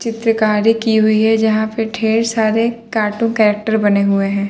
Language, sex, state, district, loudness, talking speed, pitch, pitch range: Hindi, male, Uttar Pradesh, Muzaffarnagar, -15 LUFS, 175 wpm, 220 Hz, 215-225 Hz